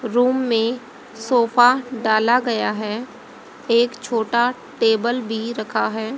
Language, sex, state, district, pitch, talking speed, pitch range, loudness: Hindi, female, Haryana, Rohtak, 240 Hz, 115 wpm, 225-250 Hz, -19 LUFS